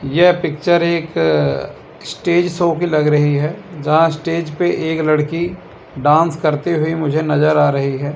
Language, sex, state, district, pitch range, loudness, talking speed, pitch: Hindi, male, Chandigarh, Chandigarh, 150-170 Hz, -16 LUFS, 160 wpm, 155 Hz